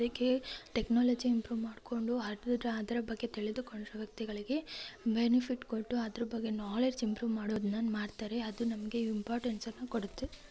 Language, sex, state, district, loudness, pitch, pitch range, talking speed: Kannada, female, Karnataka, Raichur, -36 LUFS, 230 Hz, 220-245 Hz, 120 wpm